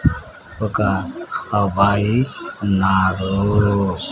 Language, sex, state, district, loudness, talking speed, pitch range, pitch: Telugu, male, Andhra Pradesh, Sri Satya Sai, -19 LUFS, 45 wpm, 95-105 Hz, 100 Hz